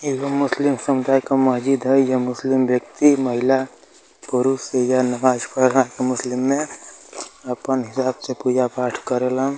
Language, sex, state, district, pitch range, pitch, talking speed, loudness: Hindi, male, Uttar Pradesh, Ghazipur, 125-135 Hz, 130 Hz, 130 wpm, -20 LUFS